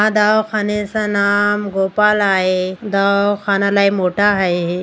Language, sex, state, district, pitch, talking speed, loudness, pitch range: Marathi, female, Maharashtra, Aurangabad, 200 Hz, 110 wpm, -15 LUFS, 195-210 Hz